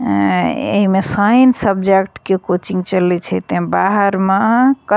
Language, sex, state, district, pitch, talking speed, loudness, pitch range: Maithili, female, Bihar, Begusarai, 190 Hz, 155 wpm, -14 LUFS, 175-205 Hz